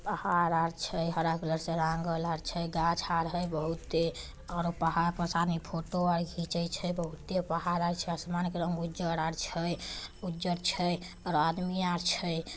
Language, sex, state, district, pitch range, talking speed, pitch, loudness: Magahi, female, Bihar, Samastipur, 165-175 Hz, 170 wpm, 170 Hz, -32 LUFS